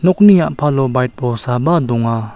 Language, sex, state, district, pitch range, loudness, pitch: Garo, male, Meghalaya, South Garo Hills, 120-165 Hz, -14 LUFS, 130 Hz